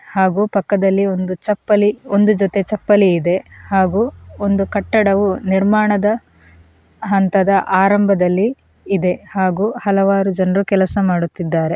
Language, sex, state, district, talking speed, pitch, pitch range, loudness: Kannada, female, Karnataka, Mysore, 100 wpm, 195 Hz, 185-205 Hz, -16 LUFS